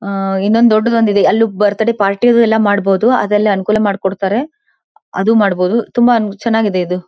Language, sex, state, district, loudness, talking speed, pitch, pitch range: Kannada, female, Karnataka, Belgaum, -13 LUFS, 160 wpm, 210 Hz, 195-230 Hz